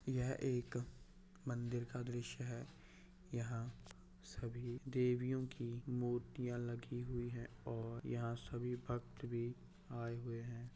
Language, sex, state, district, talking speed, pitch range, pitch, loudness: Hindi, male, Bihar, Samastipur, 115 wpm, 120-125 Hz, 120 Hz, -45 LUFS